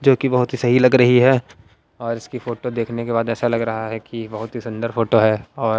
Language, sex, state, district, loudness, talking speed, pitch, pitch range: Hindi, male, Haryana, Jhajjar, -19 LUFS, 250 wpm, 115 Hz, 110-125 Hz